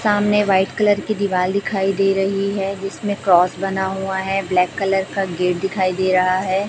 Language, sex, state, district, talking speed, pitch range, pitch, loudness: Hindi, female, Chhattisgarh, Raipur, 195 wpm, 185-200 Hz, 195 Hz, -19 LUFS